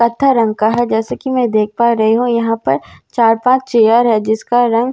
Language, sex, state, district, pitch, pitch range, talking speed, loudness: Hindi, female, Bihar, Katihar, 230 Hz, 220-245 Hz, 245 wpm, -14 LUFS